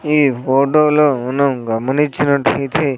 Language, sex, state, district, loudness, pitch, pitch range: Telugu, male, Andhra Pradesh, Sri Satya Sai, -15 LUFS, 140 Hz, 130-150 Hz